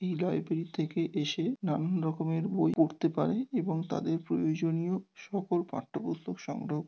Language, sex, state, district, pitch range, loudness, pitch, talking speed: Bengali, male, West Bengal, North 24 Parganas, 160-180 Hz, -32 LUFS, 165 Hz, 140 wpm